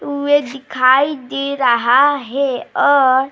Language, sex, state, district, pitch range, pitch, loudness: Hindi, female, Bihar, Bhagalpur, 255-285 Hz, 275 Hz, -15 LUFS